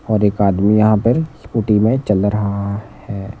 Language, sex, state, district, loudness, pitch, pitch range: Hindi, male, Himachal Pradesh, Shimla, -16 LUFS, 105 Hz, 100-110 Hz